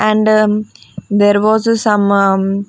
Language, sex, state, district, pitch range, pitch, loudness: English, female, Punjab, Fazilka, 200-215 Hz, 210 Hz, -13 LUFS